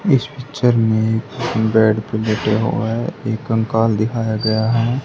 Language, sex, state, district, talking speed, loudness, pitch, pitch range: Hindi, male, Haryana, Charkhi Dadri, 145 wpm, -18 LUFS, 110 Hz, 110-120 Hz